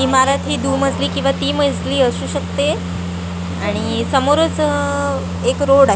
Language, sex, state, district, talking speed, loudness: Marathi, female, Maharashtra, Gondia, 140 wpm, -17 LUFS